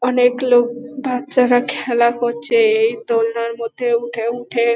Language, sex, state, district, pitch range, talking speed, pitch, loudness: Bengali, female, West Bengal, Dakshin Dinajpur, 235-255 Hz, 140 wpm, 245 Hz, -17 LUFS